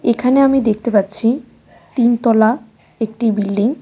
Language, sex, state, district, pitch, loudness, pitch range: Bengali, female, West Bengal, Cooch Behar, 235 Hz, -16 LUFS, 220-250 Hz